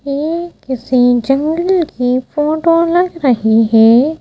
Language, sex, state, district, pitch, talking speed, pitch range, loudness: Hindi, female, Madhya Pradesh, Bhopal, 280 Hz, 115 wpm, 245-330 Hz, -13 LUFS